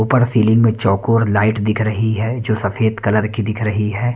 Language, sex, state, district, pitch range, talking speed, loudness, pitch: Hindi, male, Punjab, Kapurthala, 105-115 Hz, 215 wpm, -16 LUFS, 110 Hz